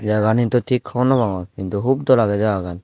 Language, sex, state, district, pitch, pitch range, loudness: Chakma, male, Tripura, Dhalai, 110 Hz, 100-125 Hz, -19 LUFS